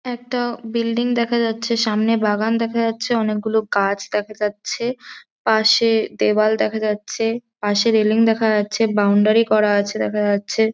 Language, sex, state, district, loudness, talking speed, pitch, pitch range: Bengali, female, West Bengal, Jhargram, -19 LUFS, 145 wpm, 220 Hz, 210-230 Hz